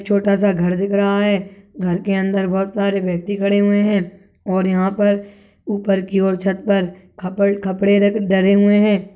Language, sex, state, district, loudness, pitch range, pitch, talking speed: Hindi, male, Chhattisgarh, Balrampur, -17 LUFS, 190-200 Hz, 200 Hz, 190 wpm